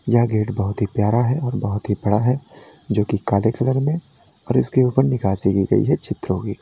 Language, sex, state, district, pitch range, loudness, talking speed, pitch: Hindi, male, Uttar Pradesh, Lalitpur, 105-125 Hz, -20 LUFS, 225 wpm, 110 Hz